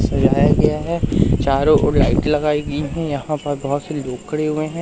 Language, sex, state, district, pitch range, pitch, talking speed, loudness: Hindi, male, Madhya Pradesh, Umaria, 145-155 Hz, 150 Hz, 210 wpm, -18 LUFS